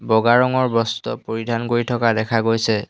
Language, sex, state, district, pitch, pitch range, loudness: Assamese, male, Assam, Hailakandi, 115 Hz, 110-120 Hz, -19 LUFS